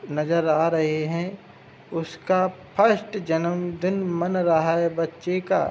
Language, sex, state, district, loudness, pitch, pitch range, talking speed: Hindi, male, Uttar Pradesh, Hamirpur, -24 LUFS, 170 Hz, 165-185 Hz, 125 wpm